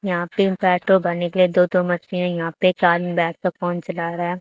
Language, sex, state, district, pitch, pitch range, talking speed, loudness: Hindi, female, Haryana, Charkhi Dadri, 180 Hz, 175-185 Hz, 270 wpm, -20 LUFS